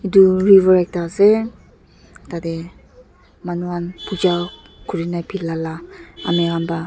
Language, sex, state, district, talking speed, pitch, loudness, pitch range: Nagamese, female, Nagaland, Dimapur, 105 wpm, 175 Hz, -18 LUFS, 170-195 Hz